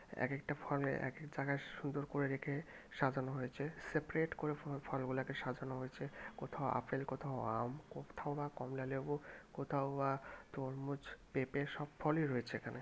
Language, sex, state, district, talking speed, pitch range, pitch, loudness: Bengali, male, West Bengal, Malda, 145 wpm, 130-145 Hz, 140 Hz, -42 LUFS